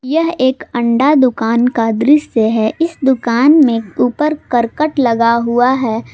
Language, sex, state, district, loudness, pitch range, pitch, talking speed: Hindi, female, Jharkhand, Palamu, -13 LUFS, 230-295 Hz, 250 Hz, 145 wpm